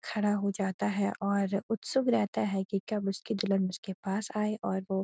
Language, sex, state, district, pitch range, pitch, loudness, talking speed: Hindi, female, Uttarakhand, Uttarkashi, 195-210 Hz, 200 Hz, -31 LUFS, 215 wpm